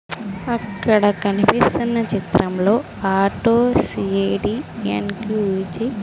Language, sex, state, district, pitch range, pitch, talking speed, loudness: Telugu, female, Andhra Pradesh, Sri Satya Sai, 185-220 Hz, 200 Hz, 70 wpm, -19 LUFS